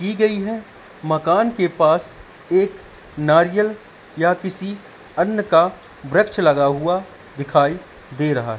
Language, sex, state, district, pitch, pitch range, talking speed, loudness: Hindi, male, Madhya Pradesh, Katni, 175 Hz, 150-200 Hz, 135 wpm, -19 LUFS